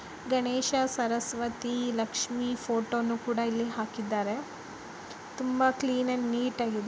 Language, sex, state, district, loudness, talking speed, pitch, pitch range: Kannada, male, Karnataka, Bellary, -30 LUFS, 95 wpm, 240 Hz, 230-250 Hz